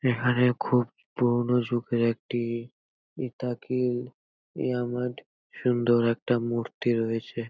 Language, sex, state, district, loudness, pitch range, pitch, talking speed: Bengali, male, West Bengal, North 24 Parganas, -27 LUFS, 115-125 Hz, 120 Hz, 90 wpm